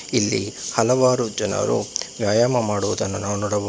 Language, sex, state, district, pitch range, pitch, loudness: Kannada, male, Karnataka, Bangalore, 100-120 Hz, 105 Hz, -21 LUFS